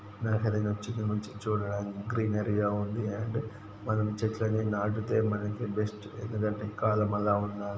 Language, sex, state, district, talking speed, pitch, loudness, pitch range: Telugu, male, Andhra Pradesh, Chittoor, 130 wpm, 105 Hz, -31 LUFS, 105-110 Hz